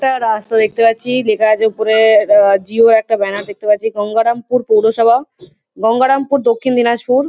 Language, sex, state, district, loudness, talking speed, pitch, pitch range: Bengali, female, West Bengal, Kolkata, -13 LUFS, 150 wpm, 225 Hz, 215-240 Hz